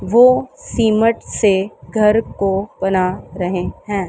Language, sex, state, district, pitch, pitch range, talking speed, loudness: Hindi, female, Punjab, Pathankot, 200 Hz, 190-225 Hz, 115 wpm, -17 LUFS